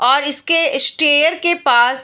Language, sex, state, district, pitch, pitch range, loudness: Hindi, female, Bihar, Bhagalpur, 290 Hz, 270-325 Hz, -13 LUFS